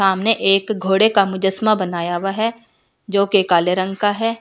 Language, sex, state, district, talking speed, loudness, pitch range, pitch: Hindi, female, Delhi, New Delhi, 175 wpm, -17 LUFS, 190-215 Hz, 195 Hz